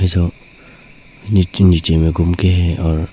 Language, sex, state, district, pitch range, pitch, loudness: Hindi, male, Arunachal Pradesh, Papum Pare, 80-95 Hz, 85 Hz, -15 LUFS